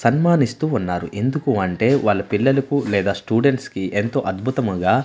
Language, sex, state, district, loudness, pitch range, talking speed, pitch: Telugu, male, Andhra Pradesh, Manyam, -20 LUFS, 100-135 Hz, 130 wpm, 120 Hz